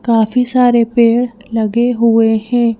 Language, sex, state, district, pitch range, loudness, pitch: Hindi, female, Madhya Pradesh, Bhopal, 225-245 Hz, -13 LUFS, 235 Hz